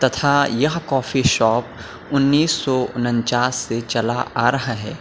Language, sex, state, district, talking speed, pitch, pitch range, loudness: Hindi, male, Uttar Pradesh, Lucknow, 145 wpm, 125 Hz, 115-140 Hz, -19 LUFS